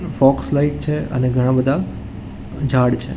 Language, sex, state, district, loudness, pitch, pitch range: Gujarati, male, Gujarat, Gandhinagar, -18 LUFS, 135 Hz, 125-145 Hz